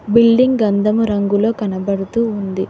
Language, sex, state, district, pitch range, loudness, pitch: Telugu, female, Telangana, Hyderabad, 200-230 Hz, -16 LUFS, 210 Hz